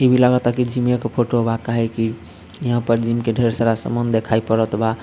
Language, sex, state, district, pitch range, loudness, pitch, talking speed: Bhojpuri, male, Bihar, Sitamarhi, 115-120 Hz, -19 LUFS, 115 Hz, 250 wpm